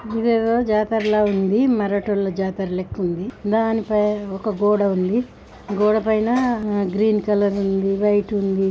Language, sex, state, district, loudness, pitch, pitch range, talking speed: Telugu, female, Telangana, Nalgonda, -20 LUFS, 210 Hz, 195-220 Hz, 105 wpm